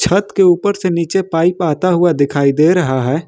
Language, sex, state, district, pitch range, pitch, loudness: Hindi, male, Jharkhand, Ranchi, 155-185 Hz, 175 Hz, -14 LUFS